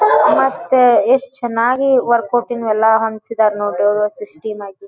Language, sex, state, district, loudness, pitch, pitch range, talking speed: Kannada, female, Karnataka, Dharwad, -15 LUFS, 230 Hz, 215-250 Hz, 135 wpm